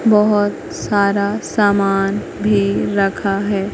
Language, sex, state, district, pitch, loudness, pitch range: Hindi, female, Madhya Pradesh, Katni, 200 Hz, -17 LUFS, 195-210 Hz